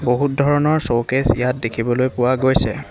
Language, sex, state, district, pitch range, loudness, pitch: Assamese, male, Assam, Hailakandi, 120-140 Hz, -18 LUFS, 130 Hz